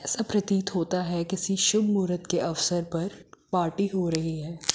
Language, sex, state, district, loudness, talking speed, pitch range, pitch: Hindi, female, Chandigarh, Chandigarh, -27 LUFS, 175 wpm, 170-195 Hz, 180 Hz